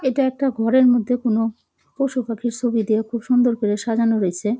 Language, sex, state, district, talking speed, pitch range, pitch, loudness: Bengali, female, West Bengal, Jalpaiguri, 185 wpm, 225-250 Hz, 235 Hz, -20 LUFS